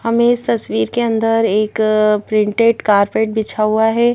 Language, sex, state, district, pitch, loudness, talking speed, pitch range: Hindi, female, Madhya Pradesh, Bhopal, 220 Hz, -15 LUFS, 160 wpm, 215-230 Hz